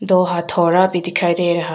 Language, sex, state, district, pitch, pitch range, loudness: Hindi, female, Arunachal Pradesh, Papum Pare, 175 Hz, 170-180 Hz, -16 LUFS